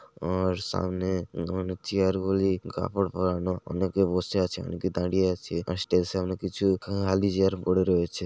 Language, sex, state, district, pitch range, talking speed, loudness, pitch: Bengali, male, West Bengal, Paschim Medinipur, 90-95 Hz, 145 wpm, -27 LUFS, 95 Hz